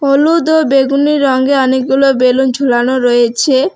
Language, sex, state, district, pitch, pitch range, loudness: Bengali, female, West Bengal, Alipurduar, 265 Hz, 255-280 Hz, -11 LUFS